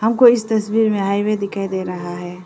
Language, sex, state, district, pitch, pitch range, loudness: Hindi, female, Arunachal Pradesh, Lower Dibang Valley, 200 Hz, 185-220 Hz, -18 LUFS